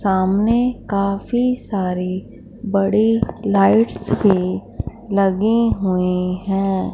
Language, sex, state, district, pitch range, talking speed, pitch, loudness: Hindi, female, Punjab, Fazilka, 190-220 Hz, 80 wpm, 200 Hz, -18 LUFS